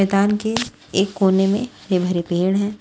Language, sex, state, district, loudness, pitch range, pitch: Hindi, female, Haryana, Rohtak, -20 LUFS, 190-210 Hz, 195 Hz